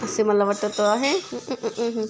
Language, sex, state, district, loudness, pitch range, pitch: Marathi, female, Maharashtra, Pune, -23 LUFS, 210-235 Hz, 215 Hz